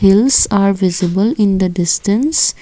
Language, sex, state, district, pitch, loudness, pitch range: English, female, Assam, Kamrup Metropolitan, 195 Hz, -13 LUFS, 185-210 Hz